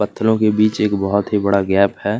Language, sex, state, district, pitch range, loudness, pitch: Hindi, male, Chhattisgarh, Kabirdham, 100-110 Hz, -16 LUFS, 105 Hz